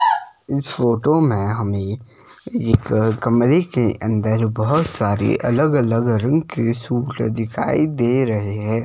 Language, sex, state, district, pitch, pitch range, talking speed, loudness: Hindi, male, Himachal Pradesh, Shimla, 115 Hz, 110-140 Hz, 120 wpm, -19 LUFS